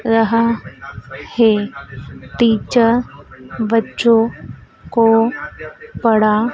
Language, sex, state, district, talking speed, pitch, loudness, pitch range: Hindi, female, Madhya Pradesh, Dhar, 55 wpm, 225 Hz, -16 LUFS, 210-230 Hz